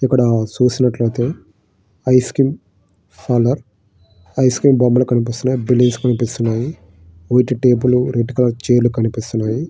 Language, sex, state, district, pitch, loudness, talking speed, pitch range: Telugu, male, Andhra Pradesh, Srikakulam, 120 Hz, -16 LUFS, 115 wpm, 110-125 Hz